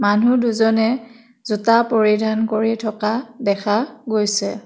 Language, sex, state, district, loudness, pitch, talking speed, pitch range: Assamese, female, Assam, Kamrup Metropolitan, -18 LUFS, 220 Hz, 105 wpm, 210-235 Hz